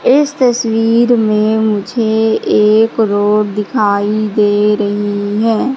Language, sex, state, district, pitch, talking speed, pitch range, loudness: Hindi, female, Madhya Pradesh, Katni, 215 Hz, 105 wpm, 210-225 Hz, -12 LUFS